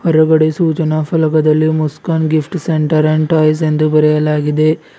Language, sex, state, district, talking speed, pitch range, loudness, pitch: Kannada, male, Karnataka, Bidar, 120 wpm, 155-160 Hz, -13 LUFS, 155 Hz